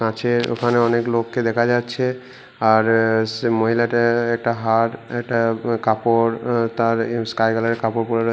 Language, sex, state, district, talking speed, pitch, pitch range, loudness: Bengali, male, West Bengal, Purulia, 160 wpm, 115 Hz, 115-120 Hz, -19 LUFS